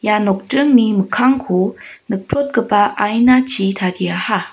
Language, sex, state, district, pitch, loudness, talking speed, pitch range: Garo, female, Meghalaya, West Garo Hills, 210 Hz, -15 LUFS, 80 wpm, 195-245 Hz